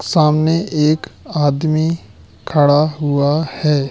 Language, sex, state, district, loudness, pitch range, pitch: Hindi, male, Madhya Pradesh, Katni, -16 LUFS, 145-155 Hz, 150 Hz